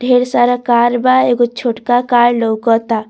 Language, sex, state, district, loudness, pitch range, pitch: Bhojpuri, female, Bihar, Muzaffarpur, -13 LUFS, 235-245 Hz, 240 Hz